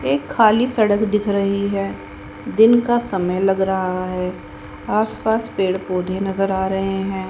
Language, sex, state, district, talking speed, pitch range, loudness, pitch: Hindi, female, Haryana, Rohtak, 165 wpm, 185-210 Hz, -19 LUFS, 195 Hz